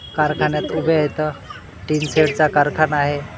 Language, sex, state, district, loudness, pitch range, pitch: Marathi, male, Maharashtra, Washim, -18 LUFS, 145-155 Hz, 150 Hz